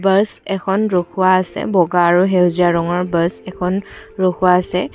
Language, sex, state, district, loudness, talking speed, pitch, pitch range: Assamese, female, Assam, Kamrup Metropolitan, -16 LUFS, 145 wpm, 180 Hz, 180-190 Hz